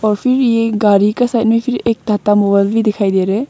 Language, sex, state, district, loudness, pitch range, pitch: Hindi, female, Arunachal Pradesh, Longding, -14 LUFS, 205-230 Hz, 215 Hz